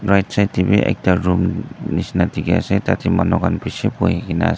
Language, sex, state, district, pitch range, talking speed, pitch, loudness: Nagamese, male, Nagaland, Dimapur, 90-100 Hz, 210 wpm, 100 Hz, -18 LUFS